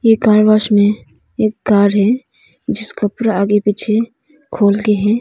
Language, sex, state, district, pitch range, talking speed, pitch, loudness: Hindi, female, Arunachal Pradesh, Longding, 205-225 Hz, 160 wpm, 215 Hz, -14 LUFS